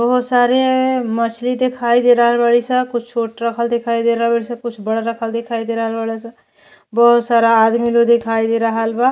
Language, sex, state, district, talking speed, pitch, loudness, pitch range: Bhojpuri, female, Uttar Pradesh, Deoria, 205 wpm, 235 Hz, -16 LUFS, 230-240 Hz